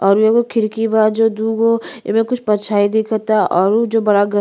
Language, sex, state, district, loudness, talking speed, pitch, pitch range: Bhojpuri, female, Uttar Pradesh, Ghazipur, -15 LUFS, 205 wpm, 220 Hz, 205-225 Hz